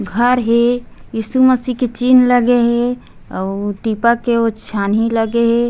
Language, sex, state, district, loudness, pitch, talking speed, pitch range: Chhattisgarhi, female, Chhattisgarh, Bastar, -15 LUFS, 235 Hz, 145 wpm, 225-245 Hz